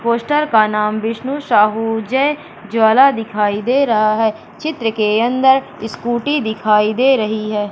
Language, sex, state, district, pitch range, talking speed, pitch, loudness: Hindi, female, Madhya Pradesh, Katni, 215-265 Hz, 145 wpm, 225 Hz, -15 LUFS